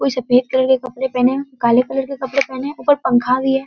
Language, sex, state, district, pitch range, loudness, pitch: Hindi, female, Bihar, Kishanganj, 255-270 Hz, -17 LUFS, 260 Hz